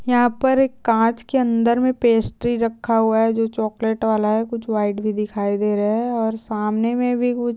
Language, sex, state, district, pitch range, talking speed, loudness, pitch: Hindi, female, Maharashtra, Dhule, 220-240 Hz, 200 wpm, -20 LUFS, 225 Hz